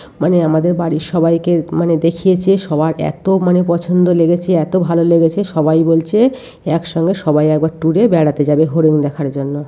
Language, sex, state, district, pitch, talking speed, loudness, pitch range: Bengali, female, West Bengal, North 24 Parganas, 165 Hz, 160 wpm, -14 LUFS, 155-180 Hz